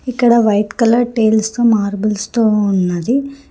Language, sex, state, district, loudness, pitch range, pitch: Telugu, female, Telangana, Hyderabad, -14 LUFS, 210-240 Hz, 220 Hz